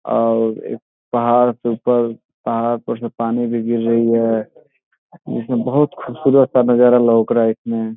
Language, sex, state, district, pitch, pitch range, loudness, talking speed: Hindi, male, Bihar, Gopalganj, 115 Hz, 115-120 Hz, -17 LUFS, 160 wpm